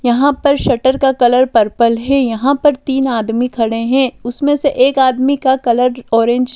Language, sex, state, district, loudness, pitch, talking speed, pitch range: Hindi, female, Delhi, New Delhi, -13 LUFS, 255 Hz, 190 wpm, 240-270 Hz